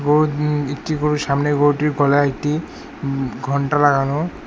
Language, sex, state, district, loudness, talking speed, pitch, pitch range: Bengali, male, West Bengal, Alipurduar, -19 LUFS, 150 wpm, 145 Hz, 140-150 Hz